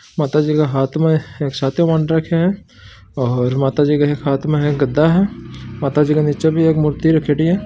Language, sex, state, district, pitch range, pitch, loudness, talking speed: Marwari, male, Rajasthan, Churu, 140-160 Hz, 150 Hz, -16 LUFS, 220 wpm